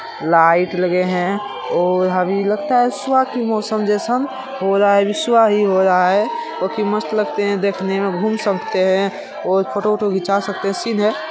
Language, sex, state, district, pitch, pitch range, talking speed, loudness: Hindi, female, Bihar, Jamui, 200 Hz, 190-215 Hz, 180 wpm, -17 LUFS